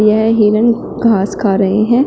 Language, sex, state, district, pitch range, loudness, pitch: Hindi, female, Uttar Pradesh, Shamli, 200-230 Hz, -12 LUFS, 215 Hz